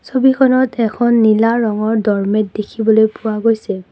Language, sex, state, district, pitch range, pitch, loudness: Assamese, female, Assam, Kamrup Metropolitan, 215-235 Hz, 220 Hz, -14 LUFS